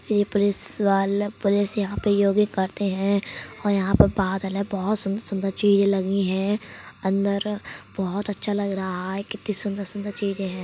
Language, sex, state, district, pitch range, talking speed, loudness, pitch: Hindi, male, Uttar Pradesh, Budaun, 195-205 Hz, 170 wpm, -24 LUFS, 200 Hz